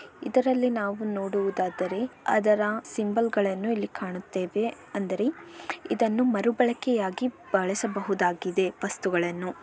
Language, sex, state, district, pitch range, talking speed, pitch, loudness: Kannada, female, Karnataka, Bellary, 190-235 Hz, 75 wpm, 205 Hz, -27 LUFS